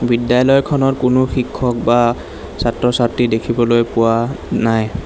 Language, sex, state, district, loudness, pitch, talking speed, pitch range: Assamese, male, Assam, Hailakandi, -15 LUFS, 120 Hz, 105 wpm, 115-125 Hz